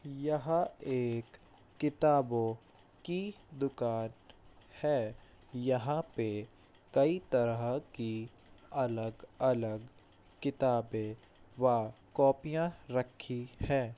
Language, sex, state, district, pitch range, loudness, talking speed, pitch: Hindi, male, Bihar, Saharsa, 110-140 Hz, -34 LUFS, 75 wpm, 120 Hz